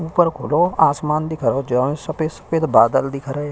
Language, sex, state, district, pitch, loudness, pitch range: Hindi, male, Uttar Pradesh, Hamirpur, 150 Hz, -18 LUFS, 135-160 Hz